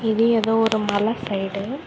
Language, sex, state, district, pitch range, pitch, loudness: Tamil, female, Tamil Nadu, Kanyakumari, 205-225 Hz, 220 Hz, -21 LUFS